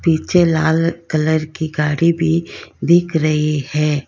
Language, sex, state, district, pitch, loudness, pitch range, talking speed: Hindi, female, Karnataka, Bangalore, 160 Hz, -16 LUFS, 150-165 Hz, 130 wpm